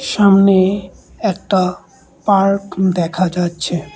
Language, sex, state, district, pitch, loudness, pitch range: Bengali, male, West Bengal, Cooch Behar, 185 Hz, -15 LUFS, 175-195 Hz